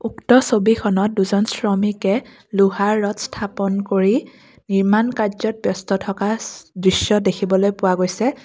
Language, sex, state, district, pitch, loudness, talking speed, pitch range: Assamese, female, Assam, Kamrup Metropolitan, 205 Hz, -19 LUFS, 120 wpm, 195-220 Hz